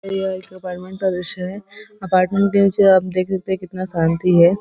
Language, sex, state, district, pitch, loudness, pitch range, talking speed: Hindi, female, Uttar Pradesh, Varanasi, 185 Hz, -18 LUFS, 185-195 Hz, 210 wpm